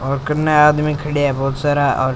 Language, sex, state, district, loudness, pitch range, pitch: Rajasthani, male, Rajasthan, Churu, -16 LUFS, 135-150 Hz, 145 Hz